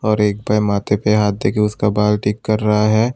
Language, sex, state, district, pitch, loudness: Hindi, male, Tripura, West Tripura, 105 Hz, -17 LUFS